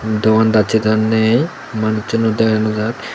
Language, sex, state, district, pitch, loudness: Chakma, male, Tripura, Dhalai, 110 Hz, -15 LUFS